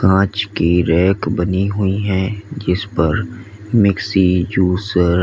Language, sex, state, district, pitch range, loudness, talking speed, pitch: Hindi, male, Uttar Pradesh, Lalitpur, 90-105 Hz, -16 LUFS, 125 wpm, 95 Hz